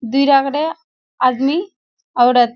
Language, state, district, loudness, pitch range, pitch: Surjapuri, Bihar, Kishanganj, -16 LUFS, 250-310 Hz, 275 Hz